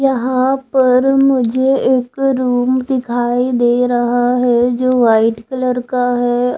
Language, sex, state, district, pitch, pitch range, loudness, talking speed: Hindi, female, Punjab, Fazilka, 250 Hz, 245-260 Hz, -14 LUFS, 130 wpm